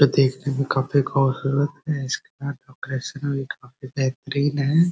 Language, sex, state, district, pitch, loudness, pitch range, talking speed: Hindi, male, Bihar, Muzaffarpur, 140 Hz, -24 LUFS, 135-140 Hz, 135 wpm